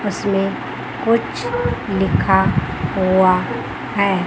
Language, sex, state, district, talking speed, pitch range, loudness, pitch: Hindi, female, Chandigarh, Chandigarh, 70 wpm, 180-200 Hz, -18 LUFS, 190 Hz